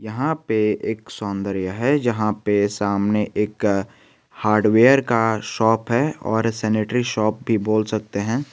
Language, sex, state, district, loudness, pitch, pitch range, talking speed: Hindi, male, Jharkhand, Garhwa, -20 LUFS, 110 Hz, 105-115 Hz, 150 wpm